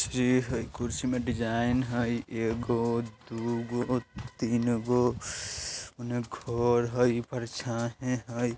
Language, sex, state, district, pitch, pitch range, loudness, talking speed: Hindi, male, Bihar, Vaishali, 120 Hz, 115-125 Hz, -30 LUFS, 75 wpm